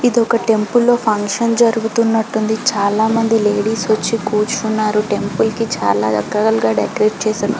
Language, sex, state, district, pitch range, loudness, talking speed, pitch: Telugu, female, Telangana, Karimnagar, 210-230 Hz, -16 LUFS, 140 wpm, 220 Hz